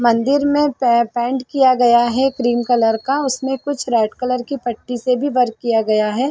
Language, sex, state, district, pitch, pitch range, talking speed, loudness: Hindi, female, Chhattisgarh, Sarguja, 250 Hz, 235-270 Hz, 200 wpm, -17 LUFS